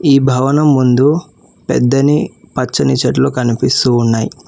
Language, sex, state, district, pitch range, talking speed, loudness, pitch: Telugu, male, Telangana, Hyderabad, 120-140 Hz, 105 wpm, -13 LUFS, 130 Hz